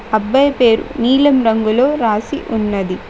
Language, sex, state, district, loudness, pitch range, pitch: Telugu, female, Telangana, Mahabubabad, -14 LUFS, 215-270 Hz, 230 Hz